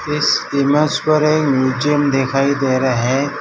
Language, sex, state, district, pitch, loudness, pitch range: Hindi, male, Gujarat, Valsad, 140 Hz, -16 LUFS, 130-150 Hz